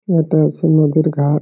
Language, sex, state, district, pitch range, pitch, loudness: Bengali, male, West Bengal, Malda, 150-160 Hz, 155 Hz, -15 LUFS